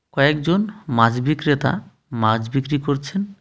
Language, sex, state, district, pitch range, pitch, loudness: Bengali, male, West Bengal, Darjeeling, 135-170 Hz, 145 Hz, -20 LUFS